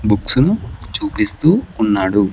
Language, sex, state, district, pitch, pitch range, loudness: Telugu, male, Andhra Pradesh, Sri Satya Sai, 105 Hz, 100-130 Hz, -16 LUFS